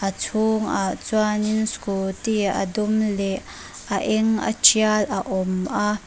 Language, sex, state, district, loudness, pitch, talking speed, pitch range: Mizo, female, Mizoram, Aizawl, -22 LUFS, 210 Hz, 140 wpm, 195-220 Hz